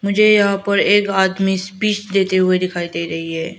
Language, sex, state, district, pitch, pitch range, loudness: Hindi, female, Arunachal Pradesh, Lower Dibang Valley, 190 Hz, 185-200 Hz, -16 LUFS